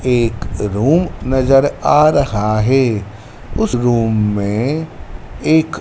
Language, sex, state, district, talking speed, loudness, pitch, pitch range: Hindi, male, Madhya Pradesh, Dhar, 105 wpm, -15 LUFS, 120 Hz, 110-140 Hz